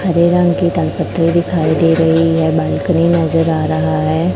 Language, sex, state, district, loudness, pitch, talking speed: Hindi, male, Chhattisgarh, Raipur, -14 LUFS, 165 Hz, 180 wpm